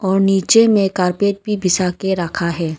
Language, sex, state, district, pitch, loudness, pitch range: Hindi, female, Arunachal Pradesh, Longding, 190 Hz, -16 LUFS, 180-200 Hz